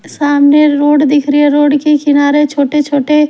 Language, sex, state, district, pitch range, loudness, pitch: Hindi, female, Haryana, Rohtak, 290-295 Hz, -10 LUFS, 290 Hz